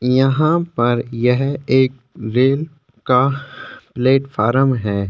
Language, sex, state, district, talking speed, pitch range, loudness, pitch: Hindi, male, Chhattisgarh, Korba, 80 wpm, 120-140 Hz, -17 LUFS, 130 Hz